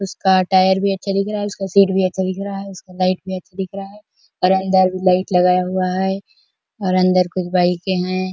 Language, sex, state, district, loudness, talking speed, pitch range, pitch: Hindi, female, Chhattisgarh, Bastar, -18 LUFS, 230 wpm, 185-195 Hz, 190 Hz